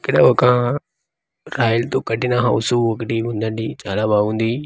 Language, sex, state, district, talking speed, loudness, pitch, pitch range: Telugu, male, Andhra Pradesh, Manyam, 115 wpm, -18 LUFS, 115 Hz, 110-125 Hz